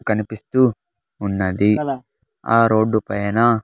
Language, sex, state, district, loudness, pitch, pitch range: Telugu, male, Andhra Pradesh, Sri Satya Sai, -19 LUFS, 110 Hz, 105-115 Hz